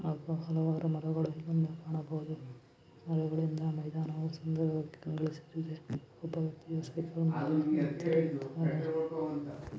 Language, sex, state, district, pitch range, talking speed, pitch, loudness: Kannada, male, Karnataka, Chamarajanagar, 155-160 Hz, 60 wpm, 160 Hz, -35 LUFS